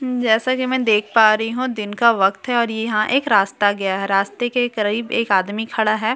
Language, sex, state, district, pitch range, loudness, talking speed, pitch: Hindi, female, Bihar, Katihar, 205-240 Hz, -18 LUFS, 235 wpm, 220 Hz